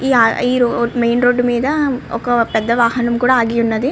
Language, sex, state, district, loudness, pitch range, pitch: Telugu, female, Andhra Pradesh, Srikakulam, -15 LUFS, 235-250 Hz, 240 Hz